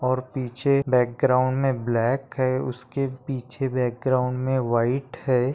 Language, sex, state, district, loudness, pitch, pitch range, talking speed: Hindi, male, Maharashtra, Nagpur, -24 LUFS, 130 Hz, 125-135 Hz, 130 wpm